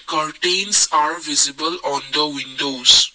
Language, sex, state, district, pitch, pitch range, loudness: English, male, Assam, Kamrup Metropolitan, 150 Hz, 140-160 Hz, -16 LUFS